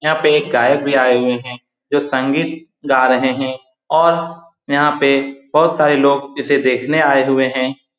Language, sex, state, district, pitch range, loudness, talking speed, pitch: Hindi, male, Bihar, Saran, 130-150 Hz, -15 LUFS, 180 wpm, 140 Hz